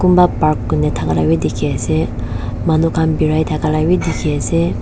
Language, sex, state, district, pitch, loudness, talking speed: Nagamese, female, Nagaland, Dimapur, 145 Hz, -16 LUFS, 160 wpm